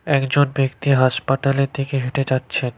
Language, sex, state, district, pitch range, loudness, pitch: Bengali, male, West Bengal, Cooch Behar, 130-140 Hz, -19 LUFS, 135 Hz